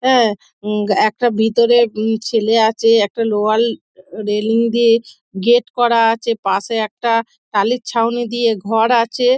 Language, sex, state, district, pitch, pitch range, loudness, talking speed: Bengali, female, West Bengal, Dakshin Dinajpur, 230 Hz, 215-235 Hz, -16 LUFS, 135 wpm